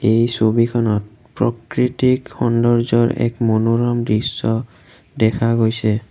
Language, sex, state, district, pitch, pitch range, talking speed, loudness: Assamese, male, Assam, Kamrup Metropolitan, 115 Hz, 110-120 Hz, 90 wpm, -18 LUFS